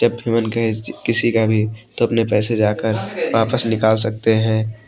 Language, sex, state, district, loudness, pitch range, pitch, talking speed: Hindi, male, Maharashtra, Washim, -18 LUFS, 110-115 Hz, 110 Hz, 185 wpm